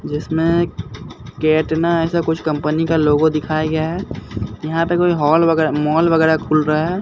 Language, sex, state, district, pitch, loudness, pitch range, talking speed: Hindi, male, Bihar, Katihar, 160 Hz, -17 LUFS, 150-165 Hz, 170 wpm